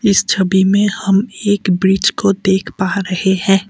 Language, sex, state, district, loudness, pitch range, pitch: Hindi, male, Assam, Kamrup Metropolitan, -14 LUFS, 190-200 Hz, 195 Hz